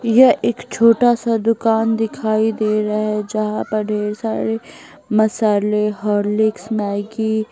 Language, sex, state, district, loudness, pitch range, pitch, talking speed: Hindi, female, Bihar, Patna, -18 LUFS, 210-225 Hz, 215 Hz, 135 wpm